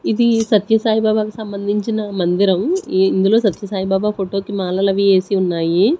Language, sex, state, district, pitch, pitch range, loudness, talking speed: Telugu, female, Andhra Pradesh, Sri Satya Sai, 200 Hz, 190-220 Hz, -17 LUFS, 160 wpm